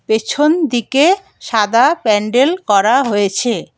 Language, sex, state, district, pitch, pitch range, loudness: Bengali, female, West Bengal, Alipurduar, 260 Hz, 220-325 Hz, -14 LUFS